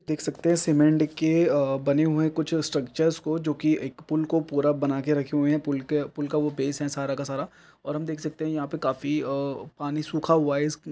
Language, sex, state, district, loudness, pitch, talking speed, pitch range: Hindi, male, Chhattisgarh, Bilaspur, -26 LUFS, 150 Hz, 225 wpm, 145-155 Hz